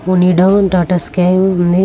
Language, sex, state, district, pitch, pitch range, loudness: Telugu, female, Telangana, Karimnagar, 185 Hz, 180-190 Hz, -12 LUFS